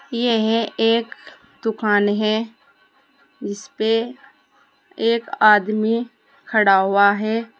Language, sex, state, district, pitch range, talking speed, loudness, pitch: Hindi, female, Uttar Pradesh, Saharanpur, 215-230 Hz, 80 wpm, -19 LUFS, 225 Hz